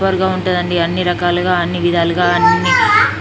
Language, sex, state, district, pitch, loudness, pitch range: Telugu, female, Telangana, Nalgonda, 180 Hz, -14 LUFS, 175-180 Hz